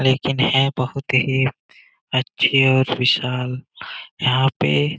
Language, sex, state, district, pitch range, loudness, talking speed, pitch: Hindi, male, Uttar Pradesh, Gorakhpur, 125-135 Hz, -19 LUFS, 120 wpm, 130 Hz